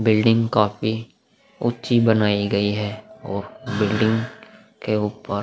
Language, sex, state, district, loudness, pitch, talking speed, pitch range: Hindi, male, Bihar, Vaishali, -21 LUFS, 110 Hz, 120 wpm, 105-115 Hz